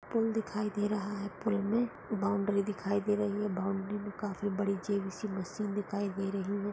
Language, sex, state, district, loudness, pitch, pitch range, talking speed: Hindi, female, Maharashtra, Pune, -34 LUFS, 205 Hz, 200-210 Hz, 205 wpm